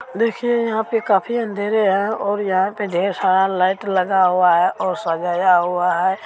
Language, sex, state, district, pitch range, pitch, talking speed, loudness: Maithili, female, Bihar, Supaul, 185-215 Hz, 195 Hz, 190 wpm, -18 LUFS